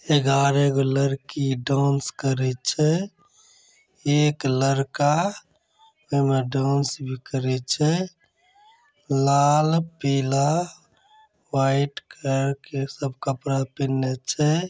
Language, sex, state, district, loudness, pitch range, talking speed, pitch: Angika, male, Bihar, Begusarai, -23 LUFS, 135-160 Hz, 95 wpm, 140 Hz